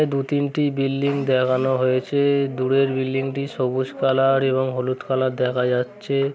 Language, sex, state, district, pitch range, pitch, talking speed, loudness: Bengali, male, West Bengal, Kolkata, 130-140 Hz, 135 Hz, 160 wpm, -21 LUFS